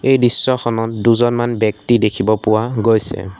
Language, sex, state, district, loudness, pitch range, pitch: Assamese, male, Assam, Sonitpur, -15 LUFS, 110-120 Hz, 115 Hz